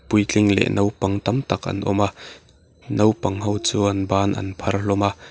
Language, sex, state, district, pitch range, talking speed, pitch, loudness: Mizo, male, Mizoram, Aizawl, 100-105 Hz, 180 wpm, 100 Hz, -21 LUFS